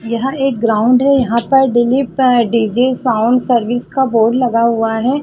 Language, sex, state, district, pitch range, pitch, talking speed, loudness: Hindi, female, Chhattisgarh, Balrampur, 230-260 Hz, 245 Hz, 170 wpm, -13 LUFS